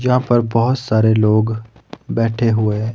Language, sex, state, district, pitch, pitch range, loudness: Hindi, male, Himachal Pradesh, Shimla, 115 Hz, 110-120 Hz, -16 LUFS